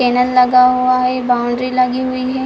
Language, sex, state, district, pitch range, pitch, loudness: Hindi, female, Bihar, Supaul, 250-255 Hz, 250 Hz, -14 LUFS